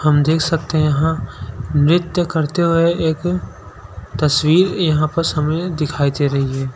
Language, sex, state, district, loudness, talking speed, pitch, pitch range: Hindi, male, Chhattisgarh, Sukma, -17 LUFS, 150 wpm, 155 Hz, 140-165 Hz